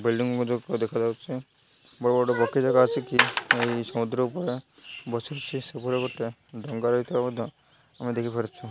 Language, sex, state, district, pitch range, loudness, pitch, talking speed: Odia, male, Odisha, Malkangiri, 115-130 Hz, -26 LUFS, 125 Hz, 75 wpm